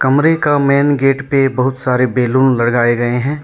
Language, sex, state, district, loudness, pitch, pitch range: Hindi, male, Jharkhand, Deoghar, -13 LUFS, 135 Hz, 125-140 Hz